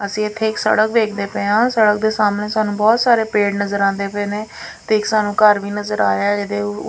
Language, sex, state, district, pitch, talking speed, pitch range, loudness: Punjabi, female, Punjab, Pathankot, 210 Hz, 225 wpm, 200-215 Hz, -17 LUFS